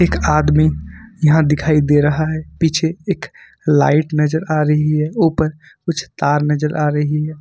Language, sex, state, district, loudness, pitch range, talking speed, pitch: Hindi, male, Jharkhand, Ranchi, -16 LUFS, 150-160 Hz, 170 wpm, 155 Hz